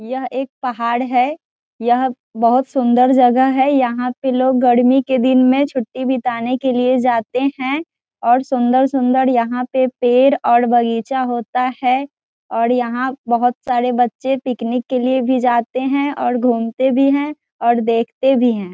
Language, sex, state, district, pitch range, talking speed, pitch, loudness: Hindi, female, Bihar, Saran, 240-260 Hz, 160 wpm, 255 Hz, -16 LUFS